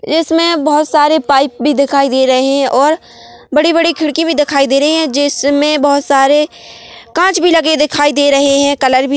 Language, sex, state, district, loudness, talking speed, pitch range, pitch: Hindi, female, Chhattisgarh, Korba, -11 LUFS, 190 wpm, 275-315 Hz, 290 Hz